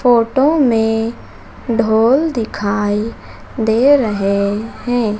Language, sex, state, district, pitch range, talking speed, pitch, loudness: Hindi, female, Madhya Pradesh, Dhar, 215-245 Hz, 80 wpm, 225 Hz, -15 LUFS